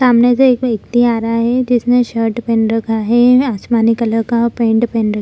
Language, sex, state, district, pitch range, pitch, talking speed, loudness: Hindi, female, Bihar, Lakhisarai, 225-245 Hz, 235 Hz, 230 wpm, -13 LUFS